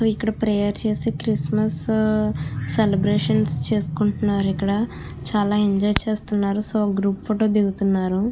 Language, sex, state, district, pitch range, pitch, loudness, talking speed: Telugu, female, Andhra Pradesh, Krishna, 200-215 Hz, 210 Hz, -22 LUFS, 95 wpm